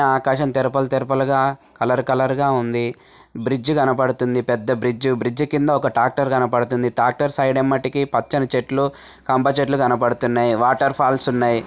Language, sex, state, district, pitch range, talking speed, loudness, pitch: Telugu, male, Telangana, Nalgonda, 125-135 Hz, 140 wpm, -19 LUFS, 130 Hz